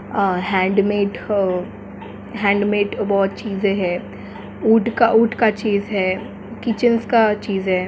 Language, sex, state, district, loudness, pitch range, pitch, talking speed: Hindi, female, Jharkhand, Jamtara, -19 LUFS, 185-220 Hz, 200 Hz, 130 wpm